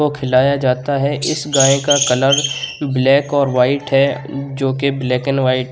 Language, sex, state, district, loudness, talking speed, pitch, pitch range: Hindi, male, Uttar Pradesh, Muzaffarnagar, -15 LUFS, 190 wpm, 140 Hz, 130-140 Hz